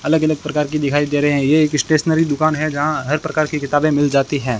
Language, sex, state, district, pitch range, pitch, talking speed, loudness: Hindi, male, Rajasthan, Bikaner, 145-155 Hz, 150 Hz, 275 wpm, -17 LUFS